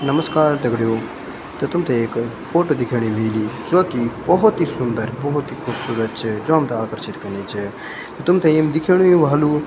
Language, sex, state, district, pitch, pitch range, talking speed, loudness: Garhwali, male, Uttarakhand, Tehri Garhwal, 125 Hz, 115-160 Hz, 175 wpm, -19 LUFS